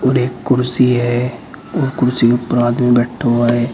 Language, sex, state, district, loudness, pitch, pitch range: Hindi, male, Uttar Pradesh, Shamli, -15 LUFS, 120 Hz, 120-125 Hz